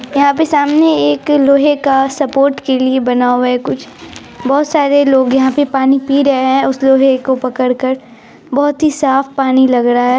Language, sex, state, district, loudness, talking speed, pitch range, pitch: Hindi, female, Bihar, Saharsa, -12 LUFS, 200 wpm, 260-280 Hz, 270 Hz